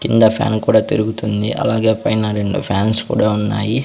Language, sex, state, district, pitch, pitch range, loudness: Telugu, male, Andhra Pradesh, Sri Satya Sai, 110 Hz, 105-110 Hz, -16 LUFS